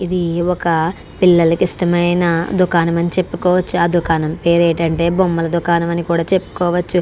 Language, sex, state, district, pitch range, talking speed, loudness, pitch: Telugu, female, Andhra Pradesh, Krishna, 170-180 Hz, 135 wpm, -16 LUFS, 170 Hz